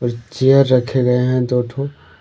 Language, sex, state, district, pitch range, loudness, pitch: Hindi, male, Jharkhand, Deoghar, 120-135 Hz, -16 LUFS, 125 Hz